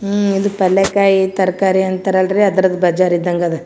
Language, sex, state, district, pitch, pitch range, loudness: Kannada, female, Karnataka, Gulbarga, 190 Hz, 185-195 Hz, -14 LUFS